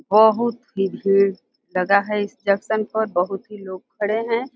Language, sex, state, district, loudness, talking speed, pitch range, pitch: Hindi, female, Uttar Pradesh, Deoria, -21 LUFS, 170 wpm, 195-220 Hz, 205 Hz